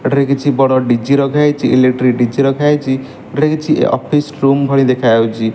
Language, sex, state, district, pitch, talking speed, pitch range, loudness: Odia, male, Odisha, Malkangiri, 135 Hz, 150 wpm, 130-145 Hz, -13 LUFS